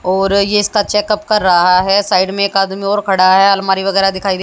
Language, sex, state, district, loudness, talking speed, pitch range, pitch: Hindi, female, Haryana, Jhajjar, -12 LUFS, 245 wpm, 190-205 Hz, 195 Hz